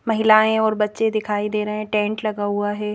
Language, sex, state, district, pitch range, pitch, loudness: Hindi, female, Madhya Pradesh, Bhopal, 210-220 Hz, 215 Hz, -20 LUFS